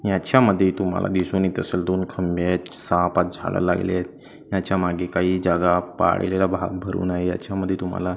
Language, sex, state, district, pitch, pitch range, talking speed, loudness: Marathi, male, Maharashtra, Gondia, 90 Hz, 90-95 Hz, 155 wpm, -22 LUFS